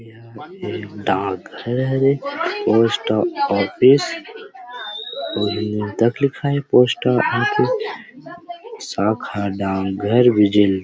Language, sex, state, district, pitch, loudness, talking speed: Chhattisgarhi, male, Chhattisgarh, Rajnandgaon, 135 Hz, -19 LUFS, 90 wpm